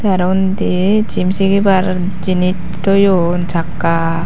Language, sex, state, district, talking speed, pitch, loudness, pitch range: Chakma, female, Tripura, Dhalai, 115 wpm, 185 Hz, -15 LUFS, 175-195 Hz